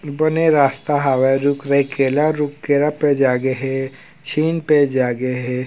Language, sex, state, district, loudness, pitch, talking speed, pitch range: Chhattisgarhi, male, Chhattisgarh, Raigarh, -18 LUFS, 140 Hz, 170 wpm, 135-150 Hz